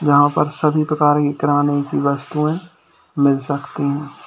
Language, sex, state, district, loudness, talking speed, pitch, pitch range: Hindi, male, Uttar Pradesh, Lalitpur, -18 LUFS, 155 wpm, 145 Hz, 145-150 Hz